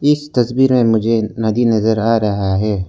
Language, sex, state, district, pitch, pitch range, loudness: Hindi, male, Arunachal Pradesh, Lower Dibang Valley, 115 Hz, 105-120 Hz, -15 LUFS